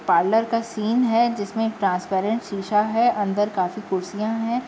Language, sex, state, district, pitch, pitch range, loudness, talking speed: Hindi, female, Uttar Pradesh, Jyotiba Phule Nagar, 215 Hz, 195-230 Hz, -22 LUFS, 155 wpm